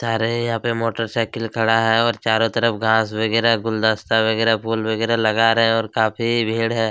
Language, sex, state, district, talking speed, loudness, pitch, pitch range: Hindi, male, Chhattisgarh, Kabirdham, 190 wpm, -19 LUFS, 115 Hz, 110-115 Hz